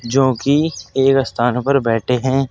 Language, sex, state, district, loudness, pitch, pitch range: Hindi, male, Uttar Pradesh, Saharanpur, -16 LUFS, 135 Hz, 125-135 Hz